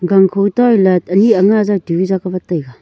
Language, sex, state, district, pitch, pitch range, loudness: Wancho, female, Arunachal Pradesh, Longding, 190 Hz, 180-200 Hz, -13 LUFS